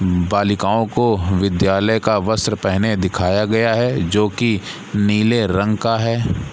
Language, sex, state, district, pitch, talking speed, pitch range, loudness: Hindi, male, Bihar, Gaya, 105 Hz, 140 wpm, 95-115 Hz, -17 LUFS